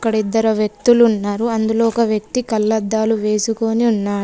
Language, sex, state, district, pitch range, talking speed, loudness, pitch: Telugu, female, Telangana, Komaram Bheem, 215-230 Hz, 140 wpm, -17 LUFS, 220 Hz